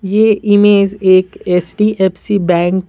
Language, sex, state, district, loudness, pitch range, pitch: Hindi, female, Bihar, Patna, -12 LUFS, 185-205 Hz, 195 Hz